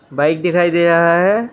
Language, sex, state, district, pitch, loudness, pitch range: Hindi, male, Assam, Kamrup Metropolitan, 170 Hz, -14 LUFS, 170-175 Hz